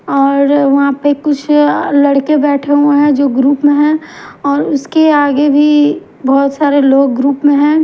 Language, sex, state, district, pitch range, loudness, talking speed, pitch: Hindi, female, Haryana, Jhajjar, 280-295 Hz, -11 LUFS, 175 wpm, 290 Hz